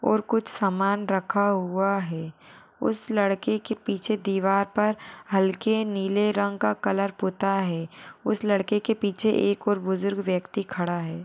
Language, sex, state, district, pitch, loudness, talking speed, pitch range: Hindi, female, Maharashtra, Sindhudurg, 200 Hz, -25 LUFS, 145 wpm, 190-210 Hz